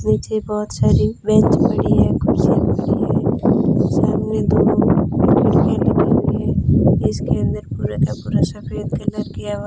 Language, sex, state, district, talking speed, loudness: Hindi, female, Rajasthan, Bikaner, 150 wpm, -17 LUFS